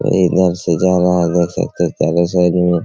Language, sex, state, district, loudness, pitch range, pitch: Hindi, male, Bihar, Araria, -15 LUFS, 85-90 Hz, 90 Hz